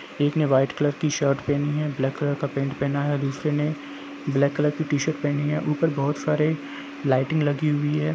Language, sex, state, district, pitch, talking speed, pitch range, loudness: Hindi, male, Jharkhand, Jamtara, 145 Hz, 220 wpm, 140-150 Hz, -24 LUFS